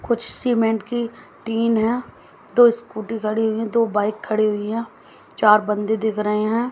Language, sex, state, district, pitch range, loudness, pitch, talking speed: Hindi, female, Haryana, Jhajjar, 215-230 Hz, -20 LUFS, 225 Hz, 180 wpm